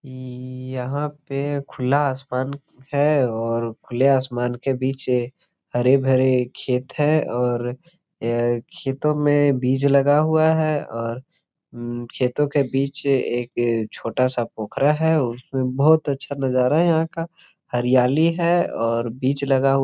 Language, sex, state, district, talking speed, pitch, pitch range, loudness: Hindi, male, Jharkhand, Sahebganj, 145 wpm, 135 Hz, 125-145 Hz, -21 LUFS